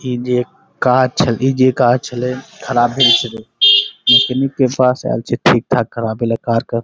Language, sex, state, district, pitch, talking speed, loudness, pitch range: Maithili, male, Bihar, Saharsa, 125 Hz, 165 wpm, -14 LUFS, 120-130 Hz